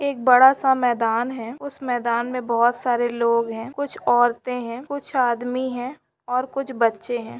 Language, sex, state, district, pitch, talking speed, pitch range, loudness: Hindi, female, West Bengal, Paschim Medinipur, 245 Hz, 180 wpm, 235-260 Hz, -21 LUFS